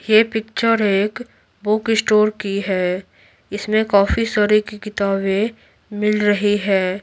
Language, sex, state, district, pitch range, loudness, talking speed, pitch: Hindi, female, Bihar, Patna, 200-215 Hz, -18 LUFS, 135 wpm, 210 Hz